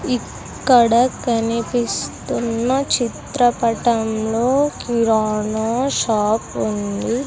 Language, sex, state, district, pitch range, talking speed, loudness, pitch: Telugu, female, Andhra Pradesh, Sri Satya Sai, 220-245 Hz, 50 wpm, -19 LUFS, 235 Hz